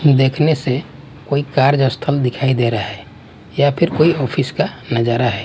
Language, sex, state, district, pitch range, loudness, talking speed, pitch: Hindi, male, Bihar, West Champaran, 120-145 Hz, -17 LUFS, 165 wpm, 135 Hz